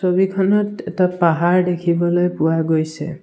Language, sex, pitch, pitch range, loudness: Assamese, male, 175 Hz, 165-180 Hz, -18 LUFS